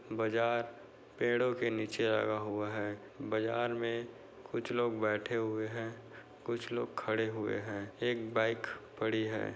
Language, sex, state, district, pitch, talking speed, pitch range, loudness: Hindi, male, Uttar Pradesh, Budaun, 110 Hz, 145 wpm, 110-120 Hz, -35 LUFS